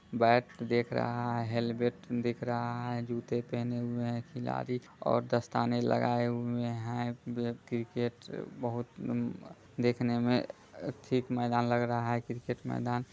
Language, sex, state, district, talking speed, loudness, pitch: Hindi, male, Bihar, Muzaffarpur, 140 wpm, -33 LUFS, 120 Hz